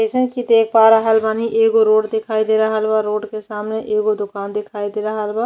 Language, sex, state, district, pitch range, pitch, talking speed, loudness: Bhojpuri, female, Uttar Pradesh, Ghazipur, 215-225 Hz, 220 Hz, 230 wpm, -17 LUFS